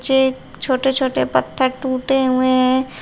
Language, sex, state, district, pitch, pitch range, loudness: Hindi, female, Uttar Pradesh, Shamli, 260 Hz, 255-265 Hz, -17 LUFS